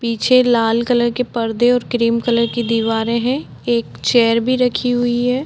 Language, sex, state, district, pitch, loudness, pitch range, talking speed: Hindi, female, Uttar Pradesh, Budaun, 240 Hz, -16 LUFS, 230-245 Hz, 185 wpm